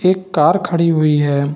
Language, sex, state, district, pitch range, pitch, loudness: Hindi, male, Bihar, Saran, 150-185 Hz, 165 Hz, -15 LUFS